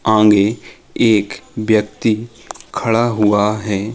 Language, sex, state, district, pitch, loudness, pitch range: Hindi, male, Uttar Pradesh, Jalaun, 110 Hz, -16 LUFS, 105-115 Hz